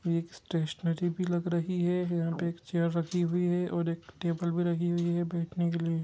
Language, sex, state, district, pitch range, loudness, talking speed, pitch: Hindi, male, Jharkhand, Jamtara, 170-175 Hz, -31 LUFS, 220 wpm, 170 Hz